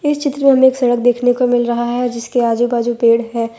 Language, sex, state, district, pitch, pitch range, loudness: Hindi, female, Gujarat, Valsad, 245 Hz, 235-250 Hz, -14 LUFS